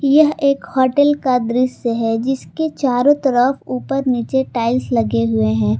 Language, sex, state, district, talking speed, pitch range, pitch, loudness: Hindi, female, Jharkhand, Palamu, 165 wpm, 235-275 Hz, 255 Hz, -17 LUFS